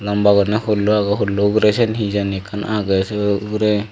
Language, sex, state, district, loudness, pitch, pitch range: Chakma, male, Tripura, Dhalai, -17 LUFS, 105 Hz, 100-105 Hz